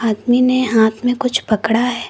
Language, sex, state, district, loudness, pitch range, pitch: Hindi, female, Uttar Pradesh, Lucknow, -16 LUFS, 220-250 Hz, 240 Hz